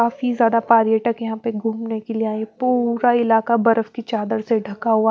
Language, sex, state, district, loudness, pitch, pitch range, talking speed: Hindi, female, Bihar, West Champaran, -19 LUFS, 225 Hz, 220-235 Hz, 200 wpm